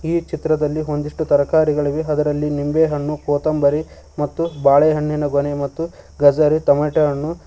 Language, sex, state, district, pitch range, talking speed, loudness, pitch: Kannada, male, Karnataka, Koppal, 145-155 Hz, 130 wpm, -18 LUFS, 150 Hz